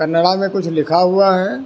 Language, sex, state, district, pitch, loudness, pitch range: Hindi, male, Karnataka, Bangalore, 185 Hz, -15 LUFS, 165-195 Hz